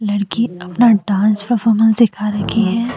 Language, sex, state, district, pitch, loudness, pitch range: Hindi, female, Uttar Pradesh, Jyotiba Phule Nagar, 215 Hz, -15 LUFS, 205-230 Hz